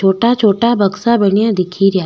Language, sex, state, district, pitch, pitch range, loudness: Rajasthani, female, Rajasthan, Nagaur, 205 Hz, 195-230 Hz, -13 LUFS